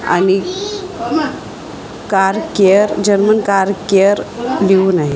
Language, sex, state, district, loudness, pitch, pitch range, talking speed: Marathi, female, Maharashtra, Washim, -14 LUFS, 200 Hz, 190-240 Hz, 95 wpm